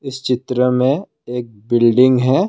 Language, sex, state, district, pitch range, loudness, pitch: Hindi, male, Assam, Kamrup Metropolitan, 120-130 Hz, -16 LUFS, 125 Hz